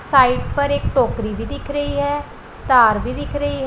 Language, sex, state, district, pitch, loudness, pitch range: Hindi, female, Punjab, Pathankot, 285 Hz, -18 LUFS, 285-290 Hz